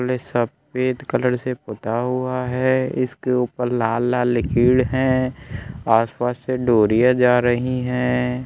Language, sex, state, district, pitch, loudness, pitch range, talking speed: Hindi, male, Bihar, Kishanganj, 125 Hz, -20 LUFS, 120-130 Hz, 130 wpm